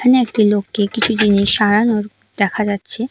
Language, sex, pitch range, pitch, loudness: Bengali, female, 205-230 Hz, 210 Hz, -15 LUFS